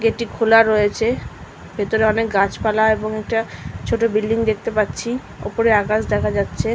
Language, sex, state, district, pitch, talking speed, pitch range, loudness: Bengali, female, West Bengal, Malda, 220 Hz, 140 wpm, 215-225 Hz, -19 LUFS